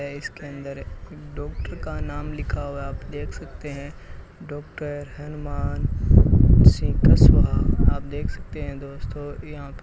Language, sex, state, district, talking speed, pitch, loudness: Hindi, male, Rajasthan, Bikaner, 145 wpm, 140 Hz, -22 LUFS